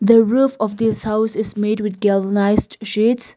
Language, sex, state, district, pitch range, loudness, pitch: English, female, Nagaland, Kohima, 210-225 Hz, -18 LUFS, 215 Hz